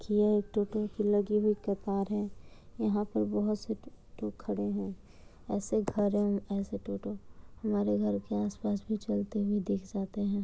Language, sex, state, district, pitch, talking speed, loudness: Hindi, female, Bihar, Kishanganj, 200 Hz, 165 wpm, -32 LUFS